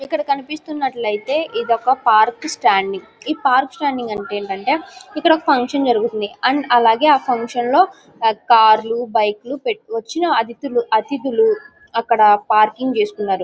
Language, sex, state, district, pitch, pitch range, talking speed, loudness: Telugu, female, Andhra Pradesh, Guntur, 250 Hz, 220-305 Hz, 125 wpm, -17 LUFS